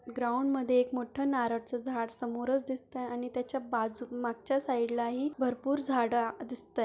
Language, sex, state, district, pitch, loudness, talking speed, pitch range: Marathi, male, Maharashtra, Sindhudurg, 250 Hz, -33 LUFS, 155 wpm, 240-265 Hz